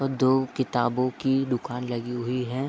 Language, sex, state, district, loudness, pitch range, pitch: Hindi, male, Uttar Pradesh, Etah, -26 LUFS, 125-135 Hz, 125 Hz